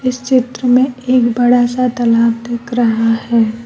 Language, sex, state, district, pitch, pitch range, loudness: Hindi, female, Uttar Pradesh, Lucknow, 240 Hz, 230-250 Hz, -13 LUFS